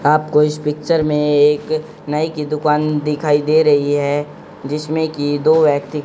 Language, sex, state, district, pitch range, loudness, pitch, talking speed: Hindi, male, Haryana, Jhajjar, 145-155 Hz, -16 LUFS, 150 Hz, 160 wpm